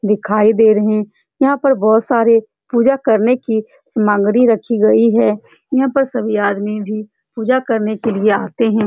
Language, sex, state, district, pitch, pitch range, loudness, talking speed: Hindi, female, Bihar, Saran, 220 Hz, 210-235 Hz, -15 LUFS, 185 wpm